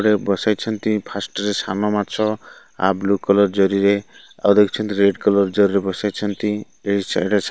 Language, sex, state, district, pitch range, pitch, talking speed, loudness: Odia, male, Odisha, Malkangiri, 100-105 Hz, 100 Hz, 160 wpm, -19 LUFS